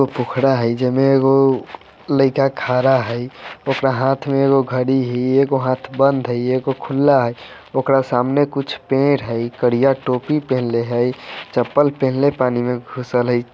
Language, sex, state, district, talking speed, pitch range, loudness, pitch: Bajjika, male, Bihar, Vaishali, 165 wpm, 125-135 Hz, -18 LUFS, 130 Hz